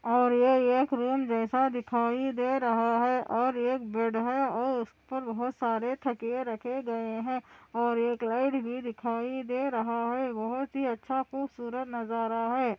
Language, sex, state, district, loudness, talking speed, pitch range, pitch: Hindi, female, Andhra Pradesh, Anantapur, -30 LUFS, 170 wpm, 235-260 Hz, 245 Hz